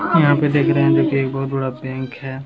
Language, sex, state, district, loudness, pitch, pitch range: Hindi, male, Bihar, Jamui, -18 LUFS, 135 Hz, 130-135 Hz